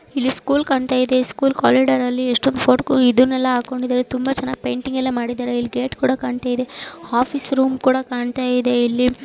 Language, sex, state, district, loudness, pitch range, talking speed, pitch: Kannada, female, Karnataka, Dharwad, -18 LUFS, 250-265 Hz, 175 wpm, 255 Hz